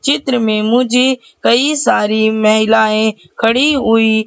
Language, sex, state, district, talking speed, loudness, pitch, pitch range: Hindi, female, Madhya Pradesh, Katni, 110 wpm, -13 LUFS, 225 Hz, 220-255 Hz